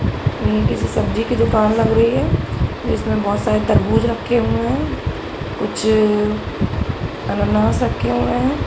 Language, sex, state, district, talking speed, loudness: Hindi, female, Bihar, Araria, 140 wpm, -18 LUFS